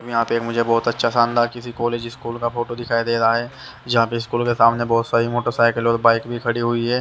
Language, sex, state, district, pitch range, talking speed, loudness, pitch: Hindi, male, Haryana, Charkhi Dadri, 115-120 Hz, 265 wpm, -19 LUFS, 120 Hz